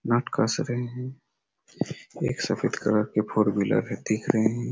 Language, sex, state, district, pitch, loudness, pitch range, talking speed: Hindi, male, Chhattisgarh, Raigarh, 110 Hz, -26 LUFS, 105-125 Hz, 190 wpm